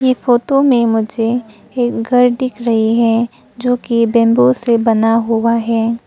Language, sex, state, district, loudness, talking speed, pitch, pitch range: Hindi, female, Arunachal Pradesh, Papum Pare, -14 LUFS, 160 wpm, 235 Hz, 230-245 Hz